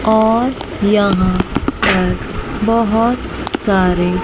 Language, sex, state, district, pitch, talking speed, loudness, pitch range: Hindi, female, Chandigarh, Chandigarh, 215 Hz, 70 wpm, -15 LUFS, 185-230 Hz